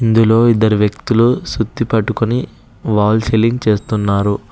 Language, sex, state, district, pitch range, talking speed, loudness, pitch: Telugu, male, Telangana, Hyderabad, 105-115 Hz, 105 wpm, -14 LUFS, 110 Hz